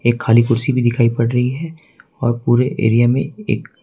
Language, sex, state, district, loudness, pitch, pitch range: Hindi, male, Jharkhand, Ranchi, -16 LUFS, 120 Hz, 115-130 Hz